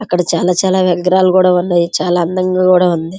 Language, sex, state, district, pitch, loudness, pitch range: Telugu, female, Andhra Pradesh, Srikakulam, 180 Hz, -12 LUFS, 175-185 Hz